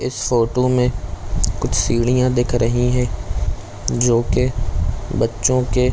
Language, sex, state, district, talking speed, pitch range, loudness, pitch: Hindi, male, Chhattisgarh, Korba, 120 wpm, 100-125 Hz, -19 LUFS, 120 Hz